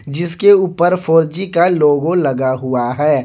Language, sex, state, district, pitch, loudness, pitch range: Hindi, male, Jharkhand, Garhwa, 165 Hz, -14 LUFS, 140-180 Hz